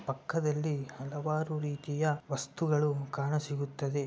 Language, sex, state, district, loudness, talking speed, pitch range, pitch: Kannada, male, Karnataka, Bellary, -33 LUFS, 90 wpm, 140-155 Hz, 145 Hz